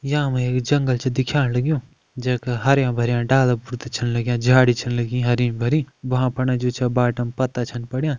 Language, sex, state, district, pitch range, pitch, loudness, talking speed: Kumaoni, male, Uttarakhand, Uttarkashi, 120-130 Hz, 125 Hz, -21 LUFS, 205 wpm